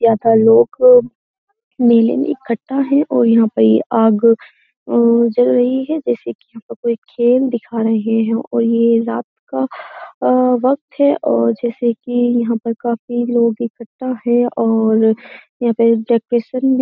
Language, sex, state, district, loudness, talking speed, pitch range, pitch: Hindi, female, Uttar Pradesh, Jyotiba Phule Nagar, -15 LUFS, 165 wpm, 230-255 Hz, 235 Hz